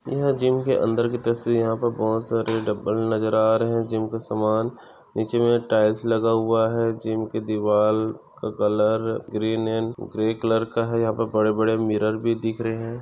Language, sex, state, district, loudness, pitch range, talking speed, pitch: Hindi, male, Maharashtra, Nagpur, -23 LUFS, 110-115 Hz, 205 wpm, 115 Hz